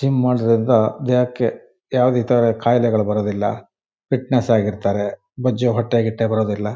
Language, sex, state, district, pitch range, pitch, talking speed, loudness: Kannada, male, Karnataka, Shimoga, 110-125 Hz, 115 Hz, 105 wpm, -19 LUFS